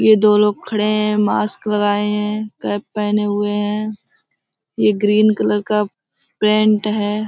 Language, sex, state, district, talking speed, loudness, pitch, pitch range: Hindi, female, Uttar Pradesh, Budaun, 150 wpm, -17 LUFS, 210 Hz, 205-215 Hz